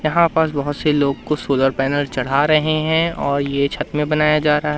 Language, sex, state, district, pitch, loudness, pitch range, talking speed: Hindi, male, Madhya Pradesh, Katni, 150 Hz, -18 LUFS, 140-155 Hz, 225 wpm